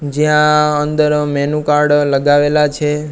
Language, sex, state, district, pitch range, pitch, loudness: Gujarati, male, Gujarat, Gandhinagar, 145-150 Hz, 150 Hz, -13 LUFS